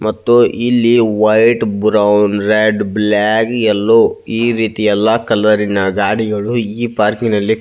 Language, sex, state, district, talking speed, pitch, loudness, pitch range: Kannada, male, Karnataka, Belgaum, 140 wpm, 110 Hz, -13 LUFS, 105-115 Hz